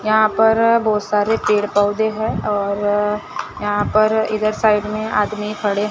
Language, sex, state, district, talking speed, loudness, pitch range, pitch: Hindi, female, Maharashtra, Gondia, 150 wpm, -18 LUFS, 205-215 Hz, 210 Hz